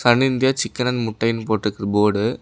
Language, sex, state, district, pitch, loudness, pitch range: Tamil, male, Tamil Nadu, Namakkal, 115 Hz, -20 LUFS, 105-125 Hz